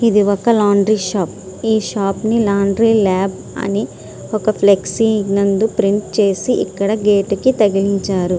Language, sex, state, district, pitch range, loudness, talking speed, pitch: Telugu, female, Andhra Pradesh, Srikakulam, 195-215 Hz, -16 LUFS, 145 wpm, 200 Hz